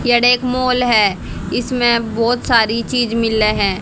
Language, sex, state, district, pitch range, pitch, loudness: Hindi, female, Haryana, Charkhi Dadri, 220-245 Hz, 235 Hz, -15 LUFS